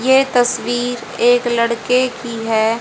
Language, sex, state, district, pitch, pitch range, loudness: Hindi, female, Haryana, Jhajjar, 240 Hz, 235-245 Hz, -16 LUFS